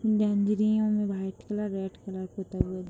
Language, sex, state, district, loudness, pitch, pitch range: Hindi, female, Uttar Pradesh, Budaun, -29 LUFS, 200 Hz, 190-210 Hz